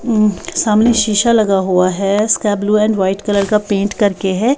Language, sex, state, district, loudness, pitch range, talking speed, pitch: Hindi, female, Bihar, Patna, -14 LUFS, 200-220 Hz, 195 wpm, 210 Hz